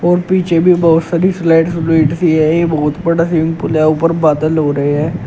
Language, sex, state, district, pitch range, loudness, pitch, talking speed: Hindi, male, Uttar Pradesh, Shamli, 155-170 Hz, -12 LUFS, 165 Hz, 205 wpm